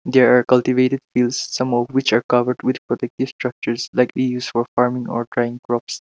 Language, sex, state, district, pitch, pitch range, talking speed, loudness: English, male, Nagaland, Kohima, 125 Hz, 120-130 Hz, 190 wpm, -19 LUFS